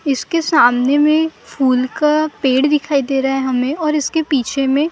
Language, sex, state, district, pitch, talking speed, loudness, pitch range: Hindi, female, Maharashtra, Gondia, 280 Hz, 185 wpm, -16 LUFS, 265-305 Hz